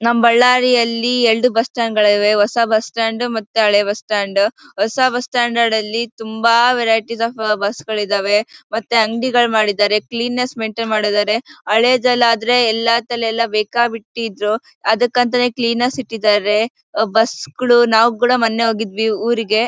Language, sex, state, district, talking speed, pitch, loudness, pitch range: Kannada, female, Karnataka, Bellary, 115 wpm, 230 Hz, -16 LUFS, 220-240 Hz